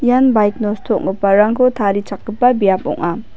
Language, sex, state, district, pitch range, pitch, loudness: Garo, female, Meghalaya, West Garo Hills, 200-245 Hz, 210 Hz, -15 LUFS